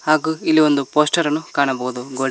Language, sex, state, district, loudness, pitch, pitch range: Kannada, male, Karnataka, Koppal, -18 LUFS, 150 Hz, 135-155 Hz